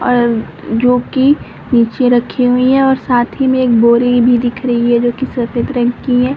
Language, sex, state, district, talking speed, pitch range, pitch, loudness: Hindi, female, Uttar Pradesh, Varanasi, 215 wpm, 240-255 Hz, 245 Hz, -13 LUFS